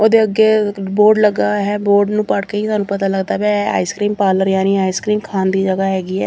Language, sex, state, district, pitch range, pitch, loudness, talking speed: Punjabi, female, Chandigarh, Chandigarh, 195-210 Hz, 205 Hz, -15 LUFS, 250 wpm